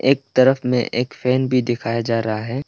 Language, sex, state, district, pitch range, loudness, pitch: Hindi, male, Arunachal Pradesh, Lower Dibang Valley, 115-130 Hz, -19 LUFS, 125 Hz